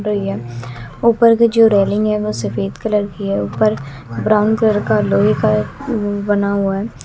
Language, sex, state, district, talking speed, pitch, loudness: Hindi, female, Bihar, West Champaran, 160 wpm, 200 Hz, -16 LUFS